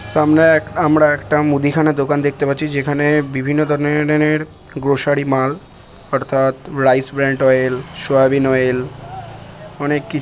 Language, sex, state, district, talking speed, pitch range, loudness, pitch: Bengali, male, West Bengal, Purulia, 125 wpm, 135-150 Hz, -16 LUFS, 140 Hz